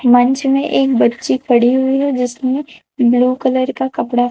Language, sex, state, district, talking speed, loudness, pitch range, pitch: Hindi, female, Chhattisgarh, Raipur, 165 wpm, -15 LUFS, 245-270 Hz, 255 Hz